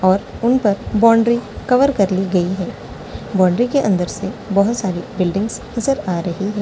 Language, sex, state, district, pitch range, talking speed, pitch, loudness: Hindi, female, Delhi, New Delhi, 185-235 Hz, 180 wpm, 200 Hz, -17 LUFS